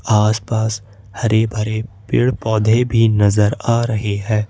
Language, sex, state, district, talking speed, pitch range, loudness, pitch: Hindi, male, Jharkhand, Ranchi, 135 wpm, 105-115 Hz, -17 LUFS, 110 Hz